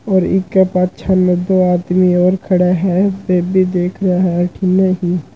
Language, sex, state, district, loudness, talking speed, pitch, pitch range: Marwari, male, Rajasthan, Churu, -14 LUFS, 170 wpm, 185 Hz, 180-190 Hz